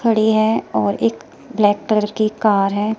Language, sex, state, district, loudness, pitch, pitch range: Hindi, female, Himachal Pradesh, Shimla, -17 LUFS, 210 Hz, 195-220 Hz